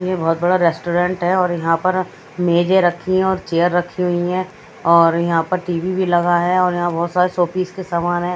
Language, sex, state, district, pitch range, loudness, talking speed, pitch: Hindi, female, Haryana, Rohtak, 175-185 Hz, -17 LUFS, 220 wpm, 175 Hz